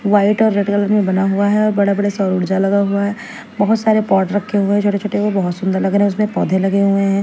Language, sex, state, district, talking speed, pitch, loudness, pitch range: Hindi, female, Delhi, New Delhi, 275 wpm, 200 Hz, -16 LUFS, 195-210 Hz